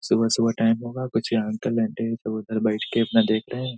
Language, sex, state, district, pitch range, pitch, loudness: Hindi, male, Bihar, Saharsa, 110-115 Hz, 115 Hz, -24 LUFS